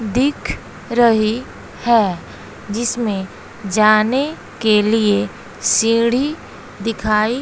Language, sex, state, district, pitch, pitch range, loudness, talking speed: Hindi, female, Bihar, West Champaran, 225 Hz, 215-240 Hz, -17 LUFS, 75 wpm